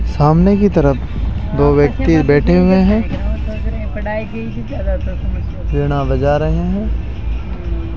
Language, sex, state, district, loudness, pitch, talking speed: Hindi, male, Rajasthan, Jaipur, -16 LUFS, 140 Hz, 90 wpm